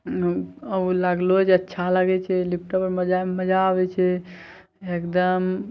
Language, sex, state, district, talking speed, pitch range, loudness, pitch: Maithili, male, Bihar, Bhagalpur, 170 wpm, 180-185 Hz, -22 LUFS, 185 Hz